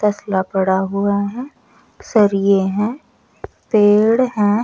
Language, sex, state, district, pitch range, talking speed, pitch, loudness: Hindi, male, Odisha, Nuapada, 195-215 Hz, 105 wpm, 205 Hz, -16 LUFS